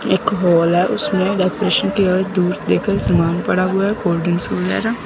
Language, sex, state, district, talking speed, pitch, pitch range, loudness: Hindi, female, Chandigarh, Chandigarh, 130 wpm, 185 Hz, 175-195 Hz, -17 LUFS